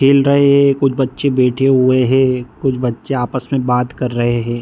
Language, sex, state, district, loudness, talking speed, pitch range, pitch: Hindi, male, Bihar, East Champaran, -15 LUFS, 235 wpm, 125-135 Hz, 130 Hz